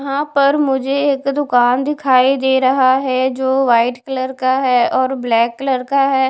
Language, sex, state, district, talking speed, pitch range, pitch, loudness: Hindi, female, Punjab, Fazilka, 180 wpm, 255-275 Hz, 265 Hz, -15 LUFS